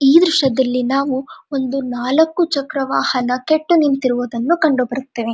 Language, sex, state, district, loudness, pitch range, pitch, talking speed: Kannada, female, Karnataka, Dharwad, -17 LUFS, 250-310 Hz, 270 Hz, 110 wpm